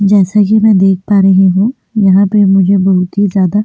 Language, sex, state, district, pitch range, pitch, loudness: Hindi, female, Goa, North and South Goa, 190-205 Hz, 200 Hz, -9 LUFS